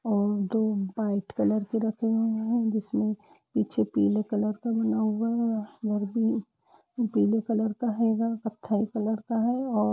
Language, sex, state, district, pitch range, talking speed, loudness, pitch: Hindi, female, Uttar Pradesh, Budaun, 210-230 Hz, 175 wpm, -27 LUFS, 220 Hz